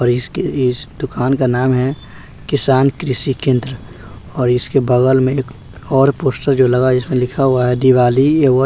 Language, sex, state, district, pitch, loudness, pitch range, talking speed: Hindi, male, Bihar, West Champaran, 130 Hz, -15 LUFS, 125-135 Hz, 165 wpm